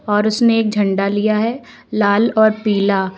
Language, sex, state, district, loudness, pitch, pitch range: Hindi, female, Uttar Pradesh, Lucknow, -16 LUFS, 215 Hz, 200-220 Hz